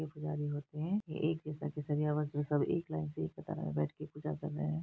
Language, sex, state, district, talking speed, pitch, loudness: Hindi, female, Bihar, Araria, 225 wpm, 145 Hz, -37 LUFS